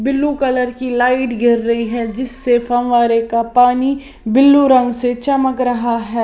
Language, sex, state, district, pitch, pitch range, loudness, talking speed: Hindi, female, Maharashtra, Washim, 245 Hz, 235-265 Hz, -15 LUFS, 165 wpm